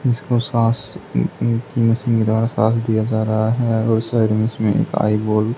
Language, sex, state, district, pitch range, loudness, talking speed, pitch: Hindi, male, Haryana, Charkhi Dadri, 110-115 Hz, -18 LUFS, 205 wpm, 115 Hz